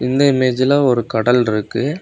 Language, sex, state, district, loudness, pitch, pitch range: Tamil, male, Tamil Nadu, Kanyakumari, -15 LUFS, 130 Hz, 120-140 Hz